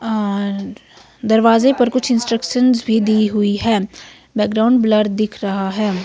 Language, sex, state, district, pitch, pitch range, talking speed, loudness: Hindi, female, Himachal Pradesh, Shimla, 220 Hz, 205-230 Hz, 140 wpm, -16 LUFS